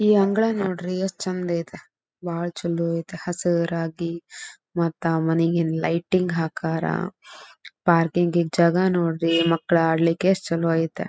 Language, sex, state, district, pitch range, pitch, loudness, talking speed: Kannada, female, Karnataka, Dharwad, 165-185 Hz, 170 Hz, -23 LUFS, 130 wpm